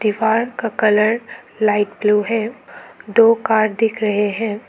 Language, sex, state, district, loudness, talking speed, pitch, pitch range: Hindi, female, Arunachal Pradesh, Lower Dibang Valley, -17 LUFS, 140 wpm, 220 Hz, 210-225 Hz